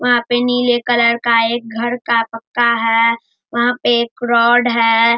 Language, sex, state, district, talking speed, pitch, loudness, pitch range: Hindi, male, Bihar, Darbhanga, 175 wpm, 235 Hz, -15 LUFS, 230-240 Hz